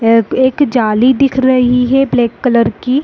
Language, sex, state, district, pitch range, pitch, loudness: Hindi, female, Chhattisgarh, Rajnandgaon, 235-265 Hz, 250 Hz, -11 LUFS